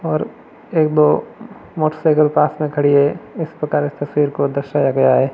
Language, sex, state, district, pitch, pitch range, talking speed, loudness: Hindi, male, Rajasthan, Barmer, 150 Hz, 145-155 Hz, 180 wpm, -17 LUFS